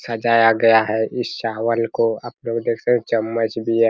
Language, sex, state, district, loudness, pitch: Hindi, male, Bihar, Araria, -19 LUFS, 115 Hz